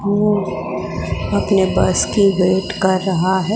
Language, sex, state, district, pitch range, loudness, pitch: Hindi, female, Gujarat, Gandhinagar, 185-200 Hz, -17 LUFS, 190 Hz